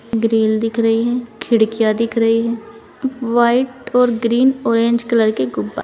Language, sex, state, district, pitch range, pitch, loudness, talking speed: Hindi, female, Uttar Pradesh, Saharanpur, 225-240 Hz, 230 Hz, -16 LUFS, 155 wpm